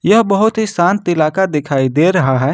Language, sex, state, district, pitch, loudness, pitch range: Hindi, male, Jharkhand, Ranchi, 175 Hz, -14 LUFS, 150-200 Hz